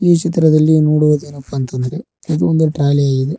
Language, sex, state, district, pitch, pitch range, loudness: Kannada, male, Karnataka, Koppal, 150 Hz, 140-160 Hz, -14 LUFS